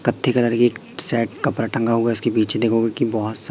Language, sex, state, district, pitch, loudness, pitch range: Hindi, male, Madhya Pradesh, Katni, 115 Hz, -18 LUFS, 115-120 Hz